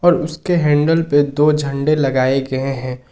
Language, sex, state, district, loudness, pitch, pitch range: Hindi, male, Jharkhand, Ranchi, -16 LUFS, 145 Hz, 135-155 Hz